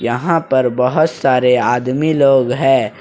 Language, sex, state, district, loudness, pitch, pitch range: Hindi, male, Jharkhand, Ranchi, -14 LUFS, 130 Hz, 125-145 Hz